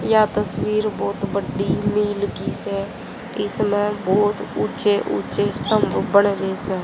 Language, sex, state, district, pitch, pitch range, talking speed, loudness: Hindi, female, Haryana, Jhajjar, 205 Hz, 200-210 Hz, 125 wpm, -21 LUFS